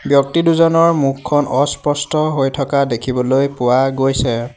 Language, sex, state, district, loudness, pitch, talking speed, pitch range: Assamese, male, Assam, Hailakandi, -15 LUFS, 140 Hz, 105 wpm, 130-145 Hz